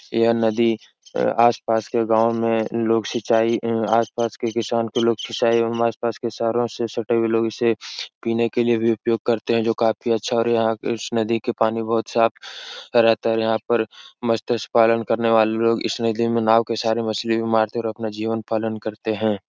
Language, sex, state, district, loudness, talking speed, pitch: Hindi, male, Uttar Pradesh, Etah, -21 LUFS, 210 wpm, 115 Hz